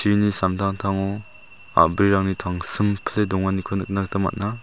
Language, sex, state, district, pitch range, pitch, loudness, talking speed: Garo, male, Meghalaya, South Garo Hills, 95-100 Hz, 100 Hz, -22 LUFS, 90 wpm